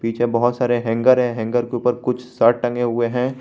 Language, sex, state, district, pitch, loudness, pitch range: Hindi, male, Jharkhand, Garhwa, 120 Hz, -19 LUFS, 120-125 Hz